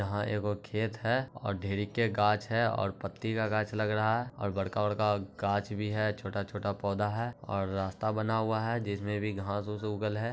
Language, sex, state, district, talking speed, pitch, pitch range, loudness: Hindi, male, Bihar, Araria, 225 wpm, 105 Hz, 100-110 Hz, -32 LUFS